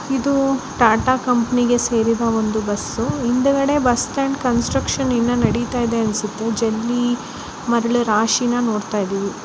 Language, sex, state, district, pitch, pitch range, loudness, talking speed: Kannada, male, Karnataka, Bellary, 240 Hz, 225-250 Hz, -19 LUFS, 115 wpm